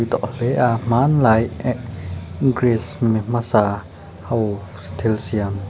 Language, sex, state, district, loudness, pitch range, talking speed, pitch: Mizo, male, Mizoram, Aizawl, -19 LUFS, 100-120 Hz, 125 wpm, 110 Hz